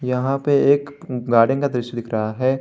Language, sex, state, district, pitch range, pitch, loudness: Hindi, male, Jharkhand, Garhwa, 120-140 Hz, 130 Hz, -20 LUFS